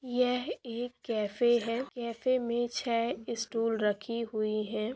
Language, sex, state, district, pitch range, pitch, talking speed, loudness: Hindi, female, Andhra Pradesh, Chittoor, 225-245 Hz, 235 Hz, 135 wpm, -32 LUFS